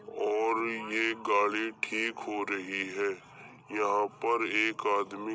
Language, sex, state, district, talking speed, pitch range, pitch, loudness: Hindi, male, Uttar Pradesh, Jyotiba Phule Nagar, 135 wpm, 100-110 Hz, 105 Hz, -30 LUFS